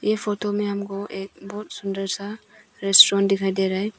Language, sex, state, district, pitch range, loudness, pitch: Hindi, female, Arunachal Pradesh, Papum Pare, 195-210 Hz, -20 LUFS, 200 Hz